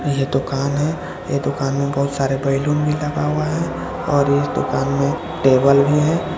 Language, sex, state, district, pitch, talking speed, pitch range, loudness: Hindi, male, Bihar, Jamui, 140 Hz, 190 wpm, 135-150 Hz, -19 LUFS